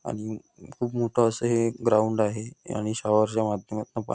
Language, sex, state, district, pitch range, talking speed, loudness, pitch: Marathi, male, Maharashtra, Nagpur, 105-115 Hz, 175 wpm, -26 LUFS, 110 Hz